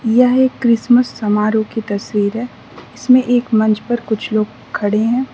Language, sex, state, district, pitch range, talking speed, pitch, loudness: Hindi, female, Mizoram, Aizawl, 215-245 Hz, 155 wpm, 225 Hz, -15 LUFS